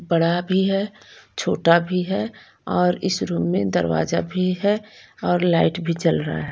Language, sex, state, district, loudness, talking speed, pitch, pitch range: Hindi, female, Punjab, Kapurthala, -21 LUFS, 175 wpm, 180 Hz, 170-195 Hz